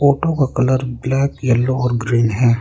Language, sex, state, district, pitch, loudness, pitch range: Hindi, male, Arunachal Pradesh, Lower Dibang Valley, 130 Hz, -17 LUFS, 120-135 Hz